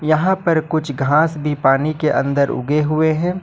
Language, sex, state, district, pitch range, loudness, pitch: Hindi, male, Jharkhand, Ranchi, 145-160 Hz, -17 LUFS, 155 Hz